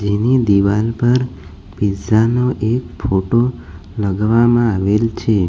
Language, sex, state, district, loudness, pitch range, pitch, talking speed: Gujarati, male, Gujarat, Valsad, -16 LUFS, 100-120 Hz, 110 Hz, 110 wpm